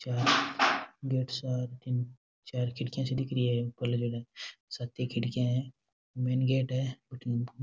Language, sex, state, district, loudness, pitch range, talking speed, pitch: Rajasthani, male, Rajasthan, Nagaur, -32 LUFS, 120-130 Hz, 110 wpm, 125 Hz